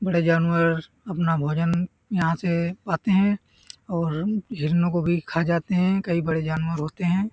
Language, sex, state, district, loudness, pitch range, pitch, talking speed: Hindi, male, Uttar Pradesh, Hamirpur, -24 LUFS, 165-185 Hz, 170 Hz, 170 wpm